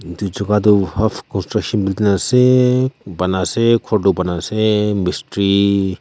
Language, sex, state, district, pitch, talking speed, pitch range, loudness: Nagamese, male, Nagaland, Kohima, 100 Hz, 130 wpm, 95-110 Hz, -16 LUFS